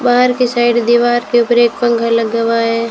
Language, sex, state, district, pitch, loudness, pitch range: Hindi, female, Rajasthan, Bikaner, 240 Hz, -13 LUFS, 230-240 Hz